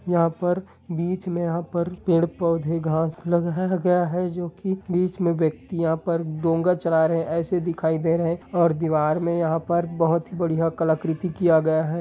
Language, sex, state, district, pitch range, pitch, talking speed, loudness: Hindi, male, Chhattisgarh, Bilaspur, 165-175 Hz, 170 Hz, 195 wpm, -23 LUFS